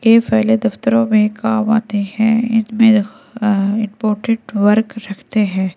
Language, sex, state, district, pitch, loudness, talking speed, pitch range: Hindi, female, Delhi, New Delhi, 215 Hz, -15 LUFS, 125 wpm, 200-225 Hz